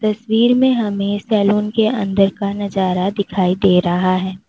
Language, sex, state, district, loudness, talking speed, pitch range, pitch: Hindi, female, Uttar Pradesh, Lalitpur, -16 LUFS, 160 wpm, 190-215 Hz, 200 Hz